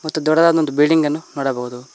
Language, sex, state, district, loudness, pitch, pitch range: Kannada, male, Karnataka, Koppal, -17 LUFS, 150 Hz, 135-160 Hz